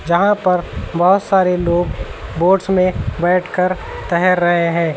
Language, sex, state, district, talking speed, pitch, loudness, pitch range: Hindi, male, Uttar Pradesh, Lucknow, 135 wpm, 180 Hz, -16 LUFS, 175-185 Hz